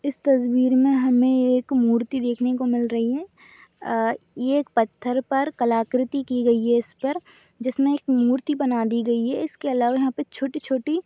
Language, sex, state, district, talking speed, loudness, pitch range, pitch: Hindi, female, Chhattisgarh, Bastar, 185 wpm, -22 LUFS, 240-275 Hz, 255 Hz